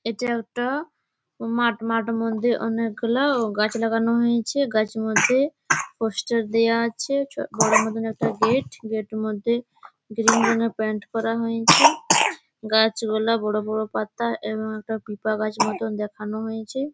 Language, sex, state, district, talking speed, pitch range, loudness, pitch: Bengali, female, West Bengal, Malda, 140 wpm, 220-235 Hz, -22 LUFS, 225 Hz